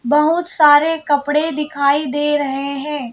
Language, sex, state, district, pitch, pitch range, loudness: Hindi, female, Madhya Pradesh, Bhopal, 295 Hz, 285-300 Hz, -16 LUFS